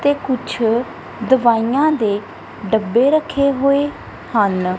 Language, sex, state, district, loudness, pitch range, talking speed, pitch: Punjabi, female, Punjab, Kapurthala, -17 LUFS, 220-280 Hz, 100 wpm, 245 Hz